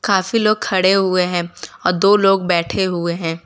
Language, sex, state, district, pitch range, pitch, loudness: Hindi, female, Gujarat, Valsad, 175-195 Hz, 185 Hz, -16 LUFS